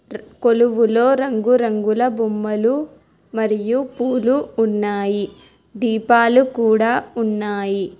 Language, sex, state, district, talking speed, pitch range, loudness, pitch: Telugu, female, Telangana, Hyderabad, 70 wpm, 215-245 Hz, -18 LUFS, 230 Hz